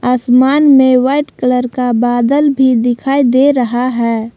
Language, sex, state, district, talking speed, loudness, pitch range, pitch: Hindi, female, Jharkhand, Palamu, 150 wpm, -11 LUFS, 245-270 Hz, 250 Hz